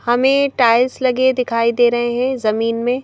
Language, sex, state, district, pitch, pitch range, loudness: Hindi, female, Madhya Pradesh, Bhopal, 240 Hz, 235-260 Hz, -16 LUFS